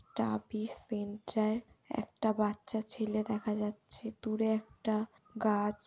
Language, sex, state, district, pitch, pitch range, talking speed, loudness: Bengali, female, West Bengal, Paschim Medinipur, 215 Hz, 210-220 Hz, 100 wpm, -36 LUFS